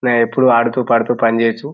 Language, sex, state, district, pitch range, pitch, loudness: Telugu, male, Telangana, Nalgonda, 115-125 Hz, 115 Hz, -14 LUFS